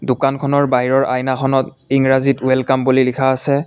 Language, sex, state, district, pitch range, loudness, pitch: Assamese, male, Assam, Kamrup Metropolitan, 130-135 Hz, -16 LUFS, 135 Hz